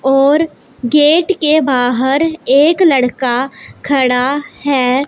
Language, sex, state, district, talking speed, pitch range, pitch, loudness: Hindi, female, Punjab, Pathankot, 95 wpm, 255-305 Hz, 275 Hz, -13 LUFS